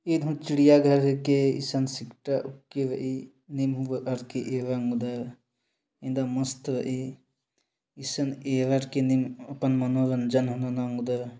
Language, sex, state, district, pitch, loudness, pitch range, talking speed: Sadri, male, Chhattisgarh, Jashpur, 130 Hz, -27 LUFS, 125-135 Hz, 95 wpm